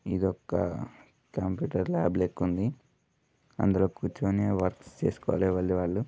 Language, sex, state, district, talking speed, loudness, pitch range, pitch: Telugu, male, Telangana, Nalgonda, 120 wpm, -29 LUFS, 90-105 Hz, 95 Hz